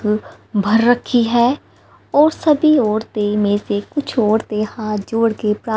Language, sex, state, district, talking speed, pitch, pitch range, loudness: Hindi, female, Haryana, Rohtak, 135 wpm, 220 Hz, 210-240 Hz, -17 LUFS